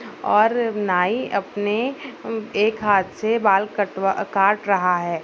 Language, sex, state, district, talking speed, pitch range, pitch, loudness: Hindi, female, Bihar, Madhepura, 135 wpm, 195-225 Hz, 205 Hz, -20 LUFS